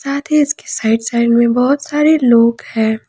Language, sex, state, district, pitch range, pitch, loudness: Hindi, female, Jharkhand, Ranchi, 230-285 Hz, 240 Hz, -14 LUFS